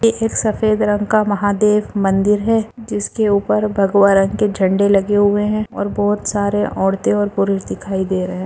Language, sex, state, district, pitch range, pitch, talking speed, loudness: Hindi, female, Bihar, Lakhisarai, 200-210 Hz, 205 Hz, 190 wpm, -16 LUFS